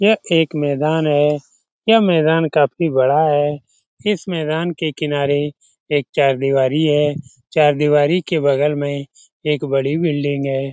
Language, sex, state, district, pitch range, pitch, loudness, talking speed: Hindi, male, Bihar, Lakhisarai, 140-160 Hz, 150 Hz, -17 LUFS, 150 wpm